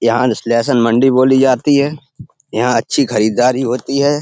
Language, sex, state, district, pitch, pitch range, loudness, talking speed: Hindi, male, Uttar Pradesh, Etah, 130 Hz, 120-140 Hz, -14 LUFS, 155 wpm